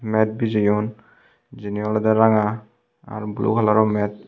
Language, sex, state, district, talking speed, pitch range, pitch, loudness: Chakma, male, Tripura, Unakoti, 140 wpm, 105-110 Hz, 110 Hz, -20 LUFS